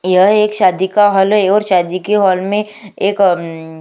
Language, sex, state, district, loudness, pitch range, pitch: Hindi, female, Chhattisgarh, Sukma, -13 LUFS, 185-205 Hz, 195 Hz